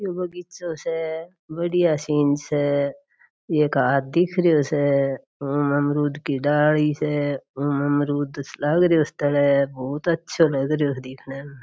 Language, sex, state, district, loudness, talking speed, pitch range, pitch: Marwari, female, Rajasthan, Churu, -22 LUFS, 105 wpm, 140-165 Hz, 145 Hz